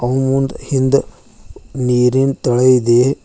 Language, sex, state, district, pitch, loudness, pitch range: Kannada, male, Karnataka, Bidar, 130 Hz, -15 LUFS, 125-135 Hz